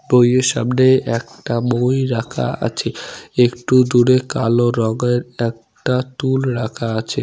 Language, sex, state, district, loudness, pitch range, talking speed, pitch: Bengali, male, West Bengal, Cooch Behar, -17 LUFS, 115-130 Hz, 125 wpm, 120 Hz